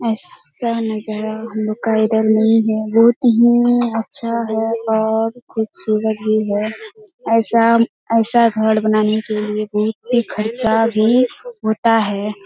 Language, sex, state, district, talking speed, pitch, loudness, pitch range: Hindi, female, Bihar, Kishanganj, 135 wpm, 220 Hz, -16 LUFS, 215-230 Hz